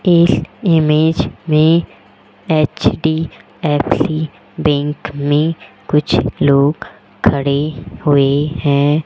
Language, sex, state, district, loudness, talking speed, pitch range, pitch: Hindi, female, Rajasthan, Jaipur, -15 LUFS, 75 wpm, 140-155 Hz, 150 Hz